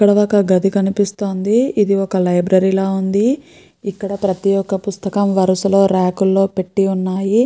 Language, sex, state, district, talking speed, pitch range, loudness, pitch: Telugu, female, Andhra Pradesh, Guntur, 145 wpm, 190-205 Hz, -16 LUFS, 195 Hz